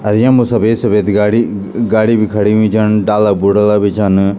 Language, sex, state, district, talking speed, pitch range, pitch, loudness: Garhwali, male, Uttarakhand, Tehri Garhwal, 190 wpm, 105-110 Hz, 105 Hz, -12 LUFS